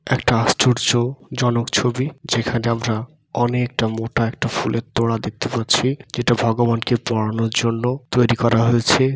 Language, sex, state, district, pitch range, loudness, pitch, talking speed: Bengali, male, West Bengal, Dakshin Dinajpur, 115-125 Hz, -19 LUFS, 120 Hz, 130 wpm